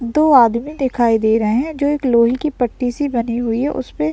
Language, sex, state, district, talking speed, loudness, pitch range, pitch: Hindi, male, Bihar, Madhepura, 245 wpm, -16 LUFS, 235-280 Hz, 245 Hz